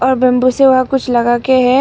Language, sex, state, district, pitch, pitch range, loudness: Hindi, female, Arunachal Pradesh, Papum Pare, 255 Hz, 250-260 Hz, -12 LUFS